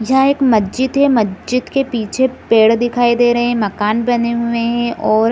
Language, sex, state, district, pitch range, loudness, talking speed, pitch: Hindi, female, Chhattisgarh, Bilaspur, 225-250 Hz, -15 LUFS, 205 wpm, 235 Hz